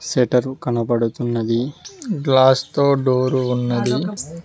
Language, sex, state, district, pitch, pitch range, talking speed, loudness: Telugu, male, Telangana, Mahabubabad, 130 Hz, 120-140 Hz, 80 wpm, -19 LUFS